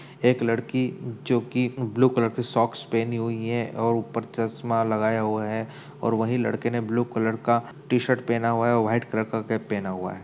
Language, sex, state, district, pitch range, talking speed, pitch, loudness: Hindi, male, Uttar Pradesh, Budaun, 115-120 Hz, 205 wpm, 115 Hz, -25 LUFS